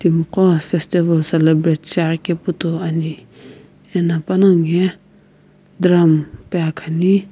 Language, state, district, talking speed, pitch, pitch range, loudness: Sumi, Nagaland, Kohima, 100 wpm, 170 Hz, 160-180 Hz, -16 LUFS